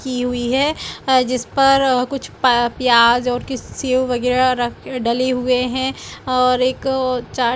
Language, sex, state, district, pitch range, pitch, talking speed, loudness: Hindi, female, Chhattisgarh, Bilaspur, 245-260 Hz, 255 Hz, 165 wpm, -17 LUFS